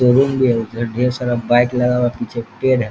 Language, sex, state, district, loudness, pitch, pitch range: Hindi, male, Bihar, East Champaran, -17 LUFS, 120 Hz, 120-125 Hz